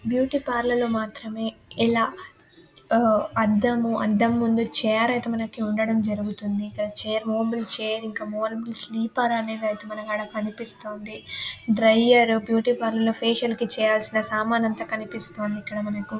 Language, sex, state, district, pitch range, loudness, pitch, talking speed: Telugu, female, Telangana, Nalgonda, 215-230 Hz, -24 LUFS, 225 Hz, 125 wpm